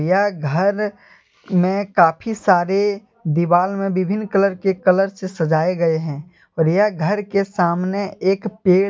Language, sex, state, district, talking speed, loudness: Hindi, male, Jharkhand, Ranchi, 150 wpm, -19 LUFS